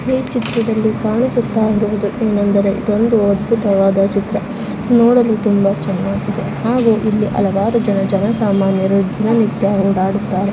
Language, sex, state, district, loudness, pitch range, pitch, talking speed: Kannada, female, Karnataka, Mysore, -15 LUFS, 195-225 Hz, 210 Hz, 110 wpm